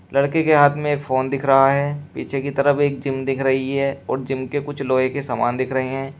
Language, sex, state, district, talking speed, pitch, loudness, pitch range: Hindi, male, Uttar Pradesh, Shamli, 260 wpm, 135 Hz, -20 LUFS, 135-145 Hz